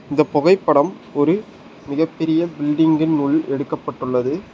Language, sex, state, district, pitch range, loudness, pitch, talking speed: Tamil, male, Tamil Nadu, Nilgiris, 145-160 Hz, -19 LUFS, 155 Hz, 105 wpm